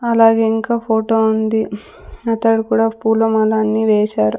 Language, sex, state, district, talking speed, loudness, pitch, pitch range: Telugu, female, Andhra Pradesh, Sri Satya Sai, 125 wpm, -15 LUFS, 225 Hz, 220-225 Hz